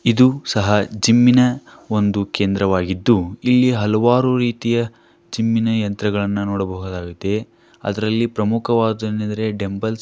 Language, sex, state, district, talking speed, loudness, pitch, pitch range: Kannada, male, Karnataka, Dharwad, 110 wpm, -18 LUFS, 110 Hz, 100-115 Hz